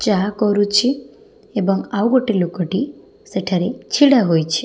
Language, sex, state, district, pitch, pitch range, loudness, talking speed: Odia, female, Odisha, Khordha, 205 Hz, 190-250 Hz, -18 LUFS, 115 wpm